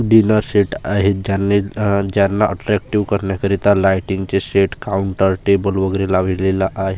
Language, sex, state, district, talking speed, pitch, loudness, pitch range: Marathi, male, Maharashtra, Gondia, 130 wpm, 100 Hz, -17 LUFS, 95-100 Hz